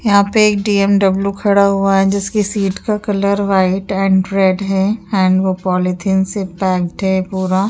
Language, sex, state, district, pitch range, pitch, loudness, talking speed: Hindi, female, Uttar Pradesh, Jyotiba Phule Nagar, 190-200 Hz, 195 Hz, -15 LUFS, 170 wpm